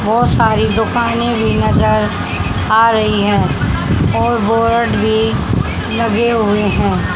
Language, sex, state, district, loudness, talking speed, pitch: Hindi, female, Haryana, Rohtak, -14 LUFS, 115 wpm, 215 Hz